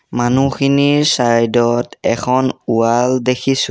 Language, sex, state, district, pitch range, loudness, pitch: Assamese, male, Assam, Sonitpur, 120-135 Hz, -15 LUFS, 125 Hz